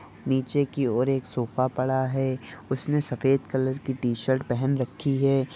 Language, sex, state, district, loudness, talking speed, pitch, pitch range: Hindi, male, Bihar, Saharsa, -26 LUFS, 160 wpm, 130 Hz, 130-135 Hz